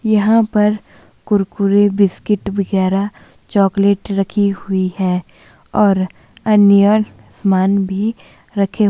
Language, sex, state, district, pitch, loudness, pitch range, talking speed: Hindi, female, Himachal Pradesh, Shimla, 200 Hz, -15 LUFS, 195-210 Hz, 95 wpm